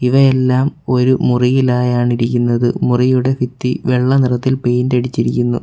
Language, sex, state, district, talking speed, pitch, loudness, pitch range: Malayalam, male, Kerala, Kollam, 105 wpm, 125 Hz, -14 LUFS, 120-130 Hz